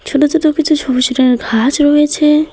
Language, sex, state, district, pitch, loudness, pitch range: Bengali, female, West Bengal, Alipurduar, 290 Hz, -12 LUFS, 255-305 Hz